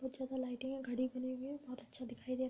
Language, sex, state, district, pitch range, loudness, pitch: Hindi, female, Uttar Pradesh, Budaun, 255-260 Hz, -43 LUFS, 255 Hz